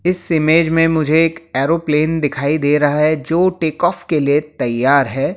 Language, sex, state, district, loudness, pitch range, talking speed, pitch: Hindi, male, Uttar Pradesh, Jyotiba Phule Nagar, -15 LUFS, 145-165 Hz, 180 wpm, 155 Hz